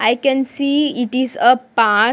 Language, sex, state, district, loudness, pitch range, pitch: English, female, Maharashtra, Gondia, -16 LUFS, 245-275 Hz, 260 Hz